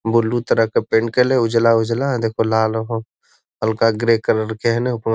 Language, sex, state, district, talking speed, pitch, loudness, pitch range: Magahi, male, Bihar, Gaya, 200 wpm, 115 Hz, -18 LUFS, 110-115 Hz